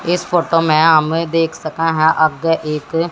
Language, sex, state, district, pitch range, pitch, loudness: Hindi, female, Haryana, Jhajjar, 155-165 Hz, 165 Hz, -15 LUFS